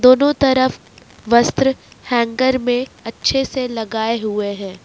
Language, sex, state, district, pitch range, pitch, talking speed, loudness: Hindi, male, Jharkhand, Ranchi, 225-260 Hz, 245 Hz, 125 wpm, -17 LUFS